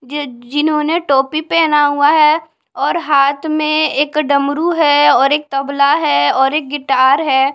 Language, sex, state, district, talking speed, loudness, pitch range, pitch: Hindi, female, Punjab, Pathankot, 160 wpm, -13 LUFS, 275-310 Hz, 290 Hz